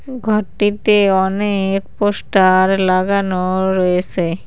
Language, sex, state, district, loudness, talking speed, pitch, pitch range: Bengali, female, West Bengal, Cooch Behar, -15 LUFS, 65 wpm, 195 Hz, 185-205 Hz